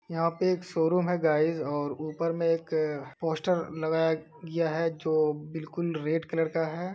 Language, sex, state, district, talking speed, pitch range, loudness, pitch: Hindi, male, Uttar Pradesh, Hamirpur, 175 wpm, 155-165 Hz, -29 LUFS, 160 Hz